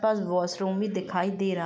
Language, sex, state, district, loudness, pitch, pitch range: Hindi, female, Uttar Pradesh, Jyotiba Phule Nagar, -28 LUFS, 190 Hz, 180-195 Hz